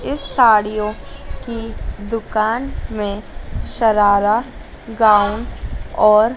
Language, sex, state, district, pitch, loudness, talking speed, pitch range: Hindi, female, Madhya Pradesh, Dhar, 215 Hz, -17 LUFS, 75 wpm, 210-230 Hz